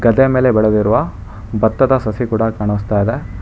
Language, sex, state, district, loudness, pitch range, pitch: Kannada, male, Karnataka, Bangalore, -15 LUFS, 105-125 Hz, 110 Hz